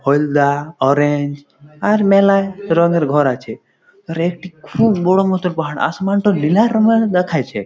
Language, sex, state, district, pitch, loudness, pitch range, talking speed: Bengali, male, West Bengal, Malda, 170 Hz, -15 LUFS, 145-195 Hz, 150 wpm